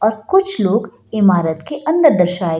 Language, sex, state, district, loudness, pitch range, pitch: Hindi, female, Bihar, Gaya, -15 LUFS, 180-220 Hz, 200 Hz